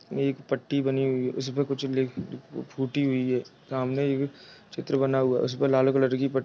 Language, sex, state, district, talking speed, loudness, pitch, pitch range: Hindi, male, Chhattisgarh, Raigarh, 215 wpm, -27 LUFS, 135 Hz, 130-140 Hz